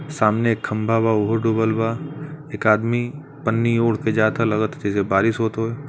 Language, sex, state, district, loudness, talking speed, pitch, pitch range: Bhojpuri, male, Uttar Pradesh, Varanasi, -20 LUFS, 205 wpm, 115 Hz, 110-115 Hz